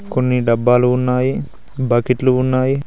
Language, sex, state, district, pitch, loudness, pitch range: Telugu, male, Telangana, Mahabubabad, 125 Hz, -16 LUFS, 125-130 Hz